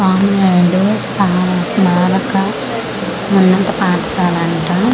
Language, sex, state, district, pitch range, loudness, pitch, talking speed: Telugu, female, Andhra Pradesh, Manyam, 180-200 Hz, -14 LUFS, 190 Hz, 75 wpm